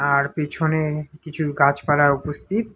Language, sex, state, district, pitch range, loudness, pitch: Bengali, male, West Bengal, Alipurduar, 140-155 Hz, -21 LUFS, 150 Hz